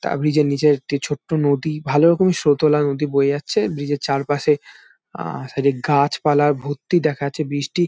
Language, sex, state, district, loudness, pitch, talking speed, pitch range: Bengali, male, West Bengal, Jalpaiguri, -19 LUFS, 145 Hz, 160 wpm, 140-150 Hz